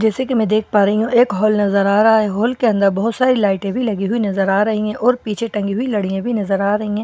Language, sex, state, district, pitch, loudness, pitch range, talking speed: Hindi, female, Bihar, Katihar, 215 Hz, -16 LUFS, 200-230 Hz, 335 wpm